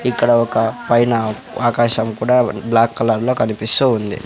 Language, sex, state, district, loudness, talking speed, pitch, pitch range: Telugu, male, Andhra Pradesh, Sri Satya Sai, -16 LUFS, 125 wpm, 115 Hz, 110-120 Hz